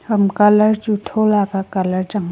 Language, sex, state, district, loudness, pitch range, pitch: Wancho, female, Arunachal Pradesh, Longding, -16 LUFS, 195-215 Hz, 210 Hz